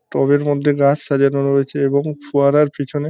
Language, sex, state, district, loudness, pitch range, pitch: Bengali, male, West Bengal, North 24 Parganas, -17 LUFS, 140-145 Hz, 140 Hz